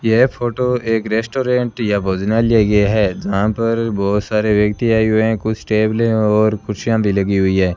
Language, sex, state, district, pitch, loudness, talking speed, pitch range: Hindi, male, Rajasthan, Bikaner, 110 Hz, -16 LUFS, 185 wpm, 105-115 Hz